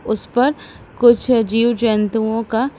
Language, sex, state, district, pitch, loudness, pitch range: Hindi, female, Uttar Pradesh, Lucknow, 230 Hz, -16 LUFS, 220-240 Hz